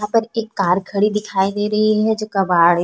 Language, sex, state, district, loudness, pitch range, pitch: Hindi, female, Chhattisgarh, Korba, -18 LUFS, 190-215 Hz, 210 Hz